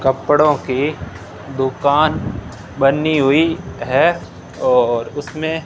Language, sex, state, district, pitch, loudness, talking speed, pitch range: Hindi, male, Rajasthan, Bikaner, 135 Hz, -17 LUFS, 85 wpm, 125-150 Hz